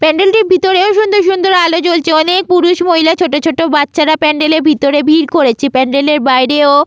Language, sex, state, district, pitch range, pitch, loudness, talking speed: Bengali, female, West Bengal, Malda, 295-360 Hz, 315 Hz, -10 LUFS, 220 wpm